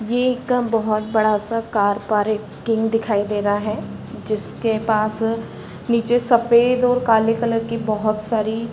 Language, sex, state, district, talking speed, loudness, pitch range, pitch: Hindi, female, Uttar Pradesh, Varanasi, 160 wpm, -20 LUFS, 215-235 Hz, 225 Hz